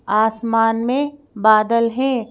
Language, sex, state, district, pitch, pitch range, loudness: Hindi, female, Madhya Pradesh, Bhopal, 230 Hz, 220-255 Hz, -17 LUFS